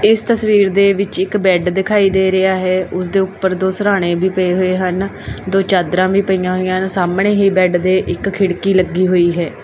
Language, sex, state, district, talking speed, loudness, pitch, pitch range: Punjabi, female, Punjab, Kapurthala, 210 wpm, -15 LUFS, 190 Hz, 185-195 Hz